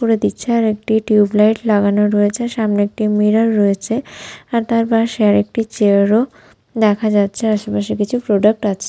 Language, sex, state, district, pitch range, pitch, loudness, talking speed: Bengali, female, West Bengal, Malda, 205-225 Hz, 215 Hz, -15 LUFS, 170 wpm